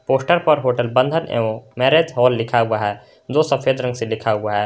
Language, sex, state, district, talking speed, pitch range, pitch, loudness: Hindi, male, Jharkhand, Garhwa, 220 wpm, 110-135 Hz, 125 Hz, -18 LUFS